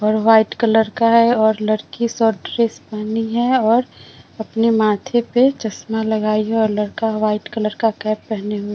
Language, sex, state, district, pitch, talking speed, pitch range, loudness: Hindi, female, Bihar, Vaishali, 220 Hz, 185 wpm, 215-230 Hz, -17 LUFS